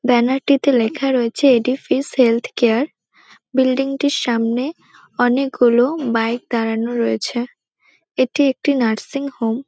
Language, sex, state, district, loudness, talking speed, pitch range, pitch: Bengali, female, West Bengal, Dakshin Dinajpur, -18 LUFS, 125 wpm, 235-275 Hz, 255 Hz